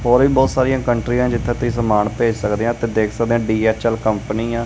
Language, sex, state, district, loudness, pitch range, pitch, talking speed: Punjabi, male, Punjab, Kapurthala, -18 LUFS, 110-120 Hz, 115 Hz, 245 wpm